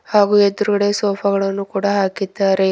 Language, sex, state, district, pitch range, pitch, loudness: Kannada, female, Karnataka, Bidar, 195-205 Hz, 200 Hz, -17 LUFS